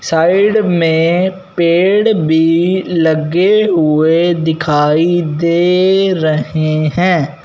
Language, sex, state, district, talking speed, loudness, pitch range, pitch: Hindi, male, Punjab, Fazilka, 80 wpm, -12 LUFS, 160-185 Hz, 170 Hz